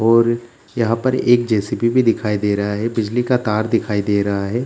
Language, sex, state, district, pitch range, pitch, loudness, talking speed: Hindi, male, Bihar, Gaya, 105-120 Hz, 115 Hz, -18 LUFS, 220 wpm